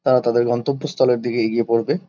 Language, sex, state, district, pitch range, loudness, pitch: Bengali, male, West Bengal, Kolkata, 120-140 Hz, -19 LUFS, 120 Hz